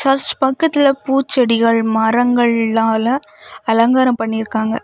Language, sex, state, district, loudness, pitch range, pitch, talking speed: Tamil, female, Tamil Nadu, Kanyakumari, -15 LUFS, 225-265 Hz, 235 Hz, 75 wpm